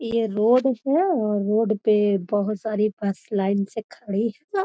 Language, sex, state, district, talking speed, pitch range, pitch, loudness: Magahi, female, Bihar, Gaya, 165 wpm, 205-235 Hz, 215 Hz, -23 LUFS